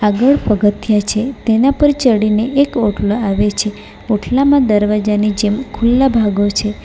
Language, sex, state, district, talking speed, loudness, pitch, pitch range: Gujarati, female, Gujarat, Valsad, 140 wpm, -14 LUFS, 215 Hz, 210-250 Hz